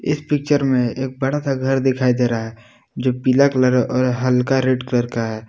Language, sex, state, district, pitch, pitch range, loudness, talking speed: Hindi, male, Jharkhand, Palamu, 130 Hz, 125-135 Hz, -18 LUFS, 220 wpm